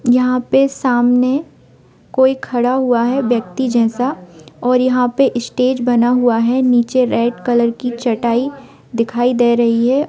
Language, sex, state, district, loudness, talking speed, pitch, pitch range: Bhojpuri, female, Bihar, Saran, -15 LUFS, 150 wpm, 245 Hz, 235-255 Hz